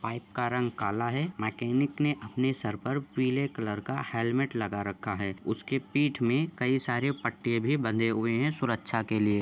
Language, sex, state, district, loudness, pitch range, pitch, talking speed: Hindi, male, Jharkhand, Sahebganj, -30 LUFS, 110-135 Hz, 120 Hz, 180 wpm